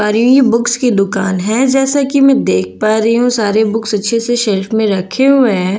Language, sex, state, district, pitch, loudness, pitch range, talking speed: Hindi, female, Bihar, Katihar, 225 Hz, -12 LUFS, 205-245 Hz, 215 wpm